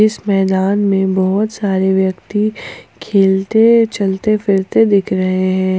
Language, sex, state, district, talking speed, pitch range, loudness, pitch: Hindi, female, Jharkhand, Ranchi, 125 wpm, 190-215 Hz, -14 LUFS, 195 Hz